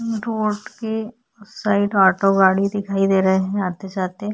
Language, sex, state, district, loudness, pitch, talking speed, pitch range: Hindi, female, Uttarakhand, Tehri Garhwal, -19 LUFS, 200 Hz, 150 wpm, 190-215 Hz